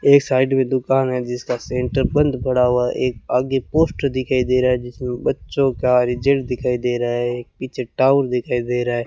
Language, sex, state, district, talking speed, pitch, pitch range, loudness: Hindi, male, Rajasthan, Bikaner, 220 wpm, 125 Hz, 125-135 Hz, -19 LUFS